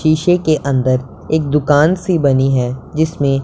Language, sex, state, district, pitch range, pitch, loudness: Hindi, male, Punjab, Pathankot, 135-160 Hz, 150 Hz, -15 LUFS